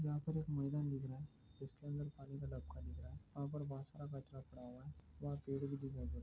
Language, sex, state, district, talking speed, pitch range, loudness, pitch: Hindi, male, Bihar, Lakhisarai, 290 wpm, 130-145 Hz, -47 LUFS, 140 Hz